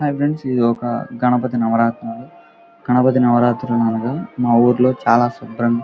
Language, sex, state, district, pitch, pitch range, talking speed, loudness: Telugu, male, Andhra Pradesh, Krishna, 120 Hz, 115-130 Hz, 135 wpm, -17 LUFS